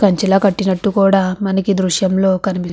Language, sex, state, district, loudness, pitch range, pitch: Telugu, female, Andhra Pradesh, Visakhapatnam, -15 LUFS, 185-195 Hz, 195 Hz